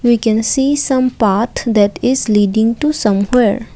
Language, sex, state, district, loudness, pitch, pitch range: English, female, Assam, Kamrup Metropolitan, -14 LUFS, 230 Hz, 215-255 Hz